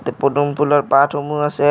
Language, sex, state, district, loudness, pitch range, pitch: Assamese, male, Assam, Kamrup Metropolitan, -17 LUFS, 140-145 Hz, 145 Hz